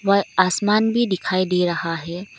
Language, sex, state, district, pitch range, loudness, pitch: Hindi, female, Arunachal Pradesh, Lower Dibang Valley, 180-200 Hz, -20 LUFS, 185 Hz